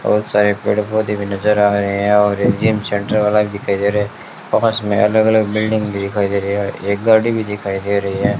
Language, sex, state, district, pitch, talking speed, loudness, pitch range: Hindi, male, Rajasthan, Bikaner, 105 Hz, 245 wpm, -16 LUFS, 100-105 Hz